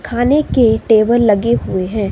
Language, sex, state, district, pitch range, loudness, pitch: Hindi, female, Himachal Pradesh, Shimla, 210-240 Hz, -13 LUFS, 225 Hz